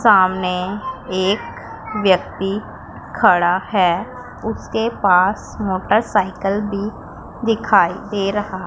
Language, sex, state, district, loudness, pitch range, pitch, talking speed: Hindi, female, Punjab, Pathankot, -18 LUFS, 185-215 Hz, 195 Hz, 90 wpm